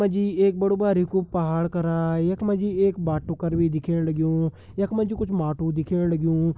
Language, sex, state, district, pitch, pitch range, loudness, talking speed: Hindi, male, Uttarakhand, Uttarkashi, 170 Hz, 165-195 Hz, -24 LUFS, 220 wpm